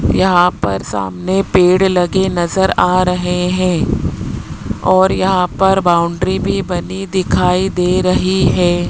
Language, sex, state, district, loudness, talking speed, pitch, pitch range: Hindi, male, Rajasthan, Jaipur, -14 LUFS, 130 wpm, 180 Hz, 175-190 Hz